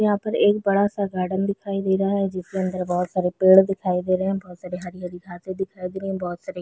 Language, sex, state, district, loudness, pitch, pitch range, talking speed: Hindi, female, Chhattisgarh, Bilaspur, -22 LUFS, 190 Hz, 180-195 Hz, 255 wpm